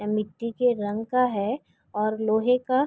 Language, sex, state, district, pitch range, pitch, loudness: Hindi, female, Chhattisgarh, Raigarh, 210-250 Hz, 220 Hz, -26 LUFS